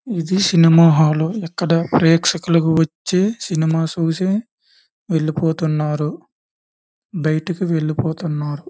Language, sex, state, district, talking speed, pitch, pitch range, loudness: Telugu, male, Andhra Pradesh, Visakhapatnam, 85 wpm, 165 Hz, 160-180 Hz, -17 LUFS